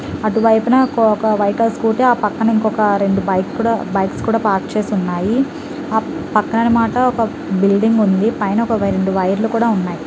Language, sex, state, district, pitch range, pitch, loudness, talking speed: Telugu, female, Telangana, Karimnagar, 200-230 Hz, 220 Hz, -16 LUFS, 165 wpm